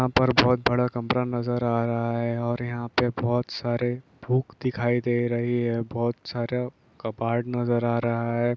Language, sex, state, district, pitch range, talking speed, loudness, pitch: Hindi, male, Bihar, East Champaran, 120-125 Hz, 190 wpm, -26 LUFS, 120 Hz